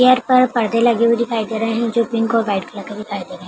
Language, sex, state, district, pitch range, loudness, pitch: Hindi, female, Bihar, Begusarai, 210-235 Hz, -17 LUFS, 230 Hz